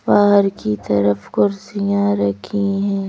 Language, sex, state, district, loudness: Hindi, female, Madhya Pradesh, Bhopal, -18 LUFS